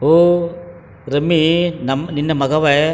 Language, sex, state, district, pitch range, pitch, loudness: Kannada, male, Karnataka, Chamarajanagar, 145-170 Hz, 160 Hz, -16 LUFS